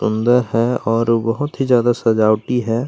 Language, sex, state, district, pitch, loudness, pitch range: Hindi, male, Chhattisgarh, Kabirdham, 115 Hz, -17 LUFS, 115-125 Hz